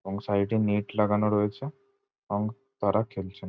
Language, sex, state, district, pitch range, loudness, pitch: Bengali, male, West Bengal, Jhargram, 100-110 Hz, -28 LUFS, 105 Hz